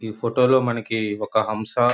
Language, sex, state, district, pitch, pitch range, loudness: Telugu, male, Andhra Pradesh, Guntur, 115 Hz, 110-120 Hz, -22 LUFS